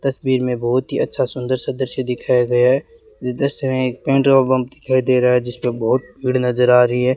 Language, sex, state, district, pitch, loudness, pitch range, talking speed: Hindi, male, Rajasthan, Bikaner, 130 Hz, -18 LUFS, 125-130 Hz, 240 wpm